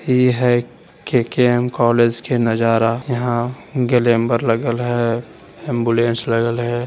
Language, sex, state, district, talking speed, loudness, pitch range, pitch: Hindi, male, Bihar, Jamui, 115 wpm, -18 LUFS, 115-125 Hz, 120 Hz